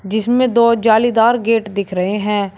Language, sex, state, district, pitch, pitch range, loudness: Hindi, male, Uttar Pradesh, Shamli, 220 Hz, 205-235 Hz, -15 LUFS